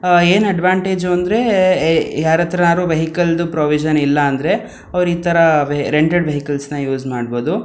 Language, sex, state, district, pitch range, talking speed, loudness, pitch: Kannada, male, Karnataka, Mysore, 150-180 Hz, 135 wpm, -15 LUFS, 165 Hz